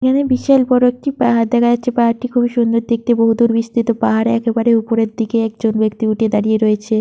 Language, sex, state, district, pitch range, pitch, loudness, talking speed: Bengali, female, West Bengal, Purulia, 225-240 Hz, 230 Hz, -15 LUFS, 195 wpm